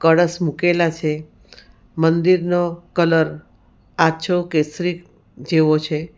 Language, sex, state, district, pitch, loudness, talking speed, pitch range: Gujarati, female, Gujarat, Valsad, 165 Hz, -19 LUFS, 90 wpm, 155-175 Hz